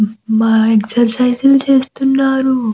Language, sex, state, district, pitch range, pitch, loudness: Telugu, female, Andhra Pradesh, Visakhapatnam, 225-270 Hz, 245 Hz, -13 LUFS